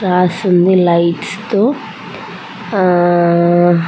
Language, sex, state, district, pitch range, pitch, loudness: Telugu, female, Andhra Pradesh, Anantapur, 175-205 Hz, 180 Hz, -13 LUFS